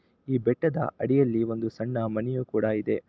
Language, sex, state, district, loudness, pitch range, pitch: Kannada, male, Karnataka, Shimoga, -27 LUFS, 110-130 Hz, 115 Hz